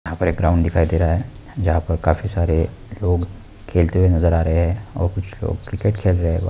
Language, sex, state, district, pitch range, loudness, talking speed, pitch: Hindi, male, Bihar, Purnia, 85-100 Hz, -20 LUFS, 210 wpm, 90 Hz